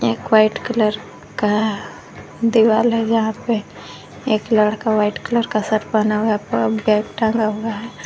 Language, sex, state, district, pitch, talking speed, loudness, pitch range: Hindi, female, Jharkhand, Garhwa, 220 Hz, 165 wpm, -18 LUFS, 210-225 Hz